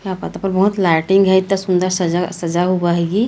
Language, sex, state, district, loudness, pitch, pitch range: Hindi, female, Chhattisgarh, Raipur, -16 LUFS, 185 Hz, 175-195 Hz